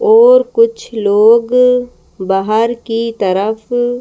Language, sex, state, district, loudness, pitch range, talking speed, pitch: Hindi, female, Madhya Pradesh, Bhopal, -12 LUFS, 215-250 Hz, 90 wpm, 235 Hz